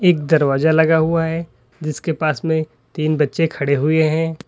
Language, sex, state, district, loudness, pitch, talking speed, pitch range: Hindi, male, Uttar Pradesh, Lalitpur, -18 LUFS, 160 Hz, 175 wpm, 150-160 Hz